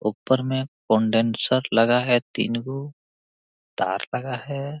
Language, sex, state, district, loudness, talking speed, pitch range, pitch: Hindi, male, Jharkhand, Jamtara, -23 LUFS, 125 wpm, 115-135 Hz, 125 Hz